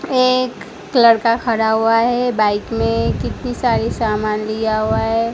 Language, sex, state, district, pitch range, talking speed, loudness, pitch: Hindi, female, Gujarat, Gandhinagar, 215-245 Hz, 145 wpm, -17 LUFS, 225 Hz